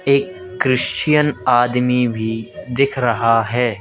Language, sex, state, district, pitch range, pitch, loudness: Hindi, male, Madhya Pradesh, Katni, 115-135 Hz, 125 Hz, -17 LUFS